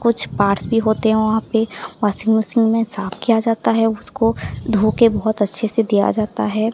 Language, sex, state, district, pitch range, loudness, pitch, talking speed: Hindi, female, Odisha, Sambalpur, 215-225 Hz, -18 LUFS, 220 Hz, 195 wpm